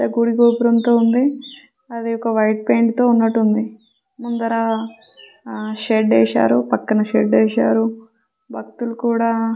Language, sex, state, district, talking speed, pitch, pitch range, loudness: Telugu, female, Telangana, Nalgonda, 130 wpm, 225 Hz, 215-235 Hz, -17 LUFS